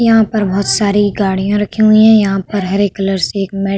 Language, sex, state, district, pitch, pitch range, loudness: Hindi, female, Uttar Pradesh, Budaun, 200 Hz, 195-215 Hz, -12 LUFS